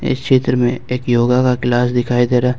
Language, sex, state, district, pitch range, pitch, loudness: Hindi, male, Jharkhand, Ranchi, 120-125 Hz, 125 Hz, -15 LUFS